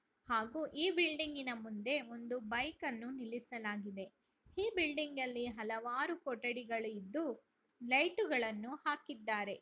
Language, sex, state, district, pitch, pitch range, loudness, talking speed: Kannada, female, Karnataka, Raichur, 245 Hz, 230-300 Hz, -39 LUFS, 95 wpm